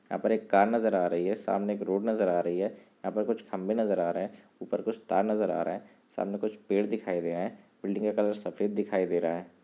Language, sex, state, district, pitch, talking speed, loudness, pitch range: Hindi, male, Chhattisgarh, Rajnandgaon, 100 Hz, 280 wpm, -30 LUFS, 90-105 Hz